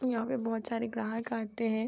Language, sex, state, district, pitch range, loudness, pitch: Hindi, female, Uttar Pradesh, Hamirpur, 225-230 Hz, -34 LUFS, 230 Hz